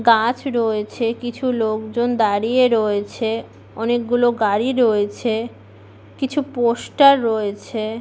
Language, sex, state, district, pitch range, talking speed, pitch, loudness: Bengali, female, West Bengal, Malda, 220-245 Hz, 95 wpm, 230 Hz, -19 LUFS